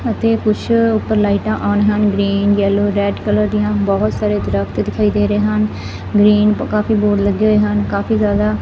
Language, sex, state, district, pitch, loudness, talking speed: Punjabi, female, Punjab, Fazilka, 200 Hz, -15 LUFS, 180 wpm